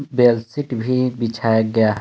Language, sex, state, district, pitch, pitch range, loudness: Hindi, male, Jharkhand, Palamu, 115 Hz, 110-125 Hz, -19 LUFS